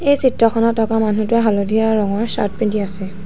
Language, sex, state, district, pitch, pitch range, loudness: Assamese, female, Assam, Sonitpur, 220 Hz, 205-230 Hz, -17 LUFS